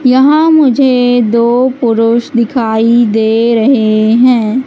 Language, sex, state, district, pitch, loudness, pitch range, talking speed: Hindi, female, Madhya Pradesh, Katni, 235 Hz, -9 LUFS, 225-255 Hz, 105 wpm